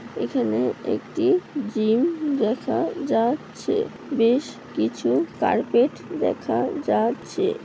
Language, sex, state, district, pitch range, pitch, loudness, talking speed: Bengali, female, West Bengal, Jalpaiguri, 230-335 Hz, 280 Hz, -23 LUFS, 80 wpm